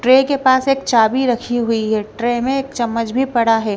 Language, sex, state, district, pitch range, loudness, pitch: Hindi, female, Punjab, Kapurthala, 230-265 Hz, -16 LUFS, 240 Hz